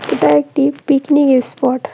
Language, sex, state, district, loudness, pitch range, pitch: Bengali, female, West Bengal, Cooch Behar, -14 LUFS, 240-280 Hz, 270 Hz